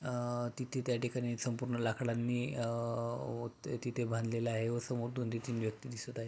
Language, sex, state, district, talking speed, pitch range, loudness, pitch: Marathi, male, Maharashtra, Pune, 180 wpm, 115-125 Hz, -37 LUFS, 120 Hz